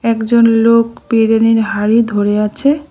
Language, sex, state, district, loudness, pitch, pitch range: Bengali, female, West Bengal, Cooch Behar, -12 LUFS, 225 Hz, 220-230 Hz